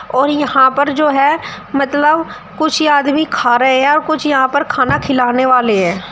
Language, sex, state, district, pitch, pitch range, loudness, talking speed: Hindi, female, Uttar Pradesh, Shamli, 280 Hz, 255-300 Hz, -13 LUFS, 185 wpm